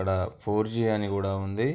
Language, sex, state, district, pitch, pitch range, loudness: Telugu, male, Andhra Pradesh, Anantapur, 105 Hz, 95-110 Hz, -28 LUFS